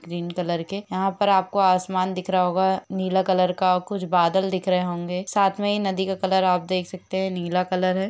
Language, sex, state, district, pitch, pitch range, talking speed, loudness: Hindi, female, Chhattisgarh, Rajnandgaon, 185 Hz, 180-190 Hz, 220 wpm, -23 LUFS